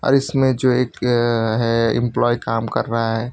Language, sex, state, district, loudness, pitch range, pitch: Hindi, male, Gujarat, Valsad, -19 LUFS, 115-125 Hz, 120 Hz